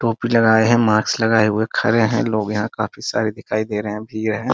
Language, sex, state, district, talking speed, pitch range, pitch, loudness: Hindi, male, Bihar, Muzaffarpur, 240 wpm, 105-115 Hz, 110 Hz, -18 LUFS